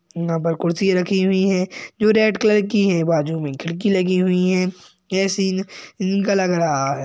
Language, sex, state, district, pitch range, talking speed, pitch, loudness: Hindi, female, Uttar Pradesh, Hamirpur, 170-195 Hz, 195 wpm, 185 Hz, -19 LUFS